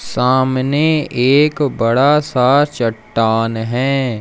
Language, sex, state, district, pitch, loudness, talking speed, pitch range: Hindi, male, Madhya Pradesh, Umaria, 130 Hz, -15 LUFS, 85 wpm, 115-145 Hz